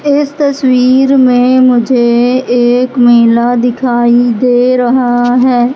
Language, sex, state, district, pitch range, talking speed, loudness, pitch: Hindi, female, Madhya Pradesh, Katni, 245-255 Hz, 105 wpm, -9 LUFS, 245 Hz